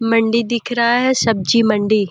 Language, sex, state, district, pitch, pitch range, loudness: Hindi, female, Uttar Pradesh, Deoria, 230 Hz, 215-235 Hz, -16 LUFS